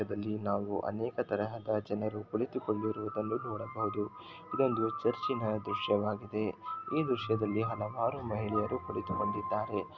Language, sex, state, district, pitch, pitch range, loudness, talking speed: Kannada, male, Karnataka, Shimoga, 105 Hz, 105-115 Hz, -34 LUFS, 95 wpm